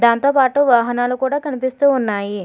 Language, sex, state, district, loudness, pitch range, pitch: Telugu, female, Telangana, Hyderabad, -16 LUFS, 235-280 Hz, 260 Hz